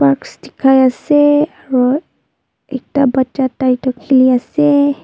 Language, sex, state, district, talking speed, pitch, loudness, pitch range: Nagamese, female, Nagaland, Dimapur, 85 wpm, 265 Hz, -13 LUFS, 255-285 Hz